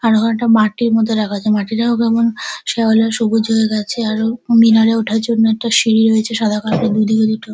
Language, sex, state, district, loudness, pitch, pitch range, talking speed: Bengali, female, West Bengal, Dakshin Dinajpur, -14 LUFS, 225 Hz, 220-230 Hz, 205 wpm